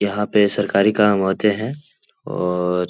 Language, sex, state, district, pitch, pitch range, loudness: Hindi, male, Bihar, Jahanabad, 105 Hz, 95-105 Hz, -18 LUFS